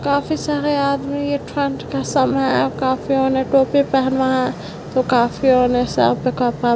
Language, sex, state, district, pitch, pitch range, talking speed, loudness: Hindi, female, Bihar, Vaishali, 265 Hz, 250-280 Hz, 170 wpm, -18 LUFS